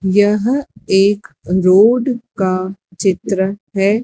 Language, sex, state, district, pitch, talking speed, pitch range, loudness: Hindi, female, Madhya Pradesh, Dhar, 195 Hz, 90 wpm, 190-210 Hz, -15 LUFS